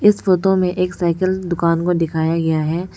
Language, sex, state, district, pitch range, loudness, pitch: Hindi, female, Arunachal Pradesh, Lower Dibang Valley, 165-185 Hz, -18 LUFS, 175 Hz